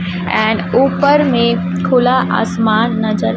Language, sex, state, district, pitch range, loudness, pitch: Hindi, female, Chhattisgarh, Raipur, 215-250 Hz, -14 LUFS, 220 Hz